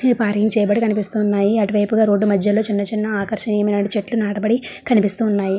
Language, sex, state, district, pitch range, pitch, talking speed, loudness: Telugu, female, Andhra Pradesh, Srikakulam, 205-220 Hz, 210 Hz, 150 wpm, -17 LUFS